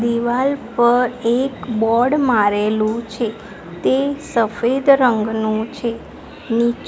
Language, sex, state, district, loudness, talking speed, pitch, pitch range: Gujarati, female, Gujarat, Gandhinagar, -18 LUFS, 105 wpm, 235 Hz, 220-250 Hz